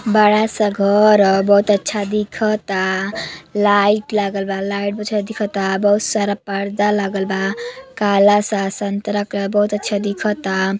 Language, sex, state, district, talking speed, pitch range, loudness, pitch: Bhojpuri, female, Uttar Pradesh, Gorakhpur, 135 wpm, 195-210 Hz, -17 LUFS, 205 Hz